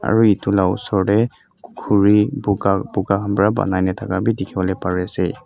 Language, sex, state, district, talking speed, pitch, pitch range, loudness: Nagamese, male, Mizoram, Aizawl, 155 wpm, 100 Hz, 95-105 Hz, -18 LUFS